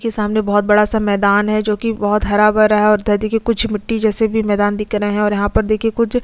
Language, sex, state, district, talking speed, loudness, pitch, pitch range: Hindi, female, Chhattisgarh, Sukma, 250 wpm, -15 LUFS, 210 Hz, 210-220 Hz